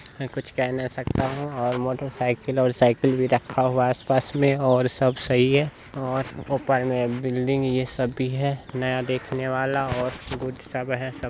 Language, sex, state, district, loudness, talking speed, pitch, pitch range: Hindi, male, Bihar, Araria, -24 LUFS, 200 wpm, 130 Hz, 125-135 Hz